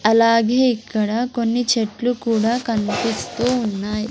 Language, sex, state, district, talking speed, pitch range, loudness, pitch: Telugu, female, Andhra Pradesh, Sri Satya Sai, 100 wpm, 220-240 Hz, -19 LUFS, 230 Hz